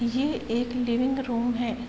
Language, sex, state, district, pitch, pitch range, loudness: Hindi, female, Uttar Pradesh, Varanasi, 240 Hz, 235-250 Hz, -27 LUFS